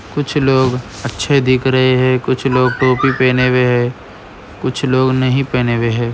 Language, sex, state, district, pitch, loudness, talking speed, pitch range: Hindi, male, Uttar Pradesh, Etah, 130 Hz, -14 LUFS, 185 wpm, 125-130 Hz